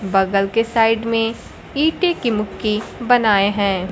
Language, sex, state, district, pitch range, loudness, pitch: Hindi, female, Bihar, Kaimur, 200-235 Hz, -18 LUFS, 225 Hz